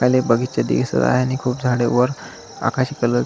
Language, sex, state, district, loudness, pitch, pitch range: Marathi, male, Maharashtra, Solapur, -19 LUFS, 120 Hz, 95-125 Hz